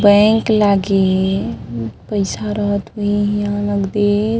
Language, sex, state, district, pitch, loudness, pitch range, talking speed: Chhattisgarhi, female, Chhattisgarh, Sarguja, 205 Hz, -17 LUFS, 195-205 Hz, 110 wpm